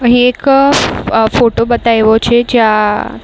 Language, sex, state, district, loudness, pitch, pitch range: Gujarati, female, Maharashtra, Mumbai Suburban, -10 LUFS, 235 Hz, 225-245 Hz